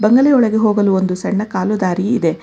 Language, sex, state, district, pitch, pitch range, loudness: Kannada, female, Karnataka, Bangalore, 205 Hz, 185-220 Hz, -15 LUFS